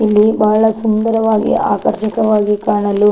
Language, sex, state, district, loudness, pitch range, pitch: Kannada, female, Karnataka, Dakshina Kannada, -14 LUFS, 210-220 Hz, 215 Hz